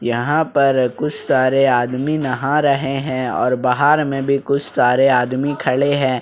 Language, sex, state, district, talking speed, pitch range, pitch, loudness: Hindi, male, Jharkhand, Ranchi, 165 wpm, 130-140 Hz, 135 Hz, -17 LUFS